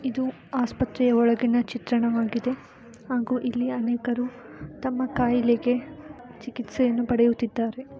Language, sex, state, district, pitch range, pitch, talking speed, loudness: Kannada, female, Karnataka, Bijapur, 235-255 Hz, 245 Hz, 75 wpm, -25 LUFS